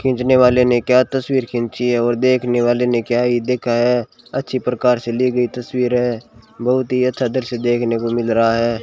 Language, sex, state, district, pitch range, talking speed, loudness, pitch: Hindi, male, Rajasthan, Bikaner, 120-125 Hz, 210 wpm, -17 LUFS, 125 Hz